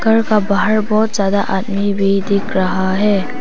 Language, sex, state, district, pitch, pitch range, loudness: Hindi, female, Arunachal Pradesh, Papum Pare, 200 Hz, 195-215 Hz, -15 LUFS